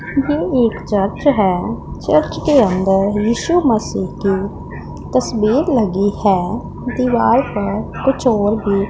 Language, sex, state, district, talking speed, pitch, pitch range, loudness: Hindi, female, Punjab, Pathankot, 120 wpm, 210 Hz, 195-245 Hz, -16 LUFS